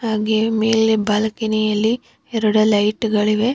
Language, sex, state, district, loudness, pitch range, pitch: Kannada, female, Karnataka, Bangalore, -18 LUFS, 215-225 Hz, 220 Hz